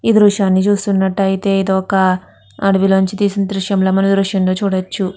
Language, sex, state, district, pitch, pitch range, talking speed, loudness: Telugu, female, Andhra Pradesh, Guntur, 195 Hz, 190-200 Hz, 150 wpm, -15 LUFS